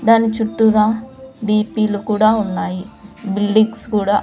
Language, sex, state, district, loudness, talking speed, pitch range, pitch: Telugu, female, Andhra Pradesh, Sri Satya Sai, -17 LUFS, 125 wpm, 205-225 Hz, 215 Hz